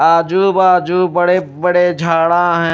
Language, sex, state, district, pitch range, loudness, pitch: Hindi, male, Odisha, Malkangiri, 165-180 Hz, -13 LUFS, 175 Hz